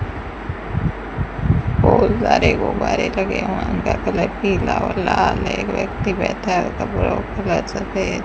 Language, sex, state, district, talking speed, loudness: Hindi, female, Rajasthan, Bikaner, 140 wpm, -19 LUFS